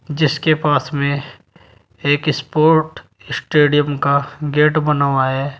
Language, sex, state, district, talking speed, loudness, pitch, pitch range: Hindi, male, Uttar Pradesh, Saharanpur, 120 wpm, -16 LUFS, 145 Hz, 140-150 Hz